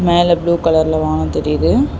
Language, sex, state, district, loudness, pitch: Tamil, female, Tamil Nadu, Chennai, -15 LUFS, 165 Hz